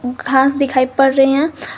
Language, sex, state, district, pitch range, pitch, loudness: Hindi, female, Jharkhand, Garhwa, 255-280 Hz, 270 Hz, -14 LUFS